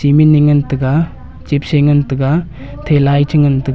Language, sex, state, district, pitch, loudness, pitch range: Wancho, male, Arunachal Pradesh, Longding, 145 Hz, -13 LUFS, 140-150 Hz